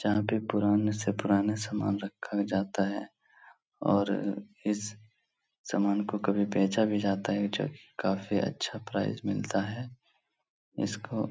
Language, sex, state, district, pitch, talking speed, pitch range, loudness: Hindi, male, Uttar Pradesh, Etah, 100 Hz, 140 wpm, 100-105 Hz, -31 LUFS